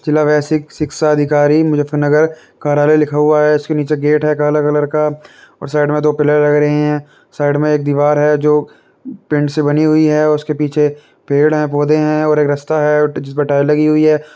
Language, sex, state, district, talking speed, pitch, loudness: Hindi, male, Uttar Pradesh, Muzaffarnagar, 215 wpm, 150 Hz, -13 LUFS